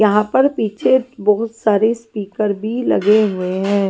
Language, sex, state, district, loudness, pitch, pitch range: Hindi, female, Haryana, Jhajjar, -16 LUFS, 215 Hz, 205-230 Hz